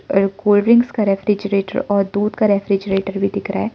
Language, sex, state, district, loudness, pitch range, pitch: Hindi, male, Arunachal Pradesh, Lower Dibang Valley, -17 LUFS, 195-210 Hz, 200 Hz